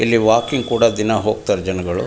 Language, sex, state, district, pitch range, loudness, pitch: Kannada, male, Karnataka, Mysore, 105-115 Hz, -17 LUFS, 110 Hz